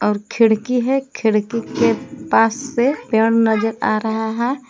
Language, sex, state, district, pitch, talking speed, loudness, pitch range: Hindi, female, Jharkhand, Palamu, 225 Hz, 155 wpm, -18 LUFS, 220-250 Hz